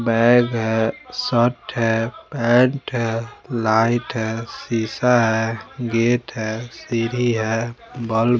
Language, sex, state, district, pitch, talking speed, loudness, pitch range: Hindi, male, Chandigarh, Chandigarh, 115 Hz, 115 wpm, -20 LUFS, 115-120 Hz